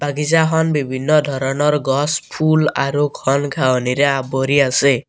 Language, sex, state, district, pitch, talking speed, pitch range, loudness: Assamese, male, Assam, Kamrup Metropolitan, 145 Hz, 120 wpm, 135-150 Hz, -17 LUFS